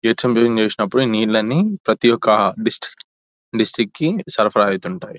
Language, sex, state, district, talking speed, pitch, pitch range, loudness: Telugu, male, Telangana, Nalgonda, 150 wpm, 115 Hz, 105-160 Hz, -17 LUFS